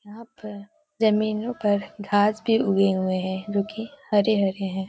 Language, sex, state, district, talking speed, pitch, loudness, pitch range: Hindi, female, Uttar Pradesh, Varanasi, 160 wpm, 205 Hz, -23 LUFS, 195-220 Hz